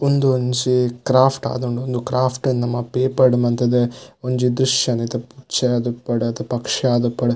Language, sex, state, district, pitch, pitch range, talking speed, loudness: Tulu, male, Karnataka, Dakshina Kannada, 125 Hz, 120-130 Hz, 105 wpm, -19 LUFS